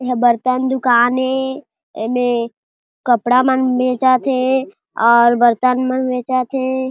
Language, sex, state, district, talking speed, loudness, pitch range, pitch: Chhattisgarhi, female, Chhattisgarh, Jashpur, 120 wpm, -16 LUFS, 245-260 Hz, 255 Hz